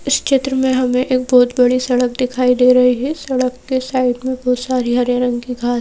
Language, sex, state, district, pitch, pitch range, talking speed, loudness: Hindi, female, Madhya Pradesh, Bhopal, 250 Hz, 250-260 Hz, 225 wpm, -16 LUFS